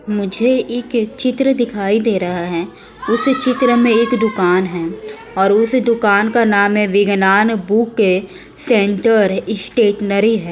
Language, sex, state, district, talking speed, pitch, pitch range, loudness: Hindi, female, Uttar Pradesh, Muzaffarnagar, 130 wpm, 215 Hz, 200-235 Hz, -15 LUFS